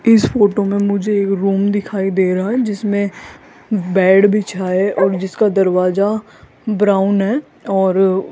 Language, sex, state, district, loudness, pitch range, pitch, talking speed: Hindi, female, Rajasthan, Jaipur, -16 LUFS, 190-205 Hz, 200 Hz, 150 wpm